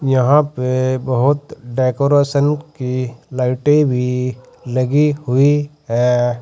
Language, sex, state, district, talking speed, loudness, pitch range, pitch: Hindi, male, Uttar Pradesh, Saharanpur, 95 wpm, -17 LUFS, 125-145 Hz, 130 Hz